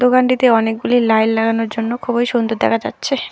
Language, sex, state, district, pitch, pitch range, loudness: Bengali, female, West Bengal, Alipurduar, 225 Hz, 225-245 Hz, -16 LUFS